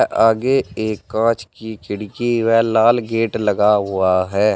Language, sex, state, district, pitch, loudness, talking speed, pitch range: Hindi, male, Uttar Pradesh, Saharanpur, 110 Hz, -17 LUFS, 145 wpm, 105-115 Hz